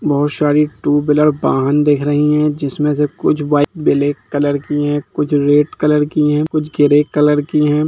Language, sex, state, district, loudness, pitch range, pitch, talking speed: Hindi, male, Bihar, Gaya, -15 LUFS, 145-150 Hz, 150 Hz, 200 wpm